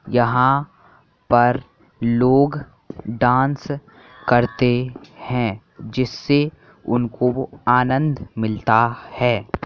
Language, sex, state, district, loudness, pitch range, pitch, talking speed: Hindi, male, Uttar Pradesh, Jalaun, -19 LUFS, 120-130 Hz, 125 Hz, 70 wpm